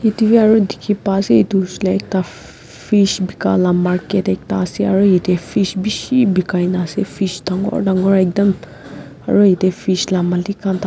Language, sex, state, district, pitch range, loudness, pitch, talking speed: Nagamese, female, Nagaland, Kohima, 180-200 Hz, -16 LUFS, 190 Hz, 150 wpm